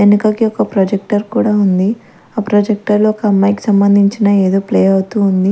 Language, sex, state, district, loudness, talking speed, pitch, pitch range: Telugu, female, Andhra Pradesh, Manyam, -13 LUFS, 150 wpm, 205 Hz, 195-215 Hz